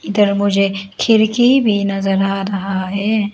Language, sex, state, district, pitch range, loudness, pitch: Hindi, female, Arunachal Pradesh, Lower Dibang Valley, 195-215 Hz, -15 LUFS, 200 Hz